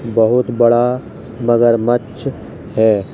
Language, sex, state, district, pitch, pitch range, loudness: Hindi, male, Uttar Pradesh, Jalaun, 120 Hz, 115-125 Hz, -15 LUFS